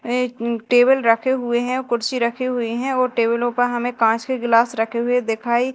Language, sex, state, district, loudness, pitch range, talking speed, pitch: Hindi, female, Madhya Pradesh, Dhar, -19 LUFS, 235-250 Hz, 200 wpm, 240 Hz